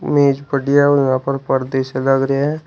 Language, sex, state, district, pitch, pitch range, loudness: Hindi, male, Uttar Pradesh, Shamli, 135 Hz, 135-140 Hz, -16 LUFS